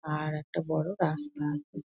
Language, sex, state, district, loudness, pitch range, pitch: Bengali, female, West Bengal, North 24 Parganas, -32 LUFS, 150-155 Hz, 150 Hz